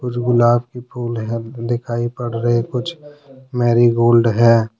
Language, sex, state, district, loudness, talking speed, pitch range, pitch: Hindi, male, Jharkhand, Deoghar, -17 LUFS, 150 wpm, 115-125 Hz, 120 Hz